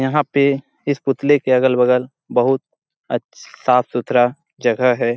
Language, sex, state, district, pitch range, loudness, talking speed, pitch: Hindi, male, Jharkhand, Jamtara, 125-140 Hz, -18 LUFS, 150 wpm, 130 Hz